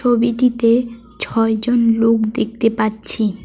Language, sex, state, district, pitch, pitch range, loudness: Bengali, female, West Bengal, Alipurduar, 230 Hz, 220-240 Hz, -16 LUFS